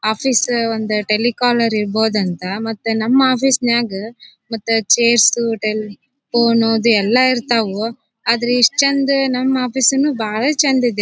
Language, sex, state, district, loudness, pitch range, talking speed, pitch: Kannada, female, Karnataka, Dharwad, -15 LUFS, 220-255 Hz, 130 wpm, 235 Hz